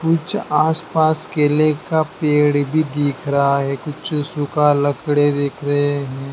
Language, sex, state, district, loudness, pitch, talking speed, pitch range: Hindi, male, Madhya Pradesh, Dhar, -18 LUFS, 150 Hz, 150 wpm, 145-155 Hz